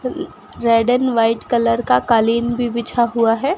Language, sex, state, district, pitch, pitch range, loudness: Hindi, female, Rajasthan, Bikaner, 235 Hz, 230-240 Hz, -17 LUFS